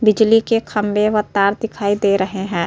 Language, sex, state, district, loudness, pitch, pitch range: Hindi, female, Uttar Pradesh, Jyotiba Phule Nagar, -17 LUFS, 210 Hz, 200-220 Hz